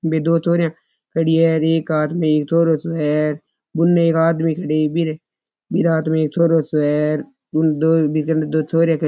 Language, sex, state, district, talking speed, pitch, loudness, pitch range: Rajasthani, male, Rajasthan, Churu, 185 wpm, 160 Hz, -18 LUFS, 155-165 Hz